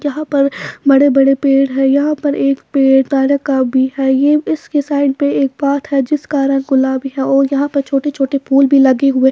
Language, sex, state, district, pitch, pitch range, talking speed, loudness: Hindi, female, Bihar, Patna, 275 Hz, 270-285 Hz, 205 wpm, -13 LUFS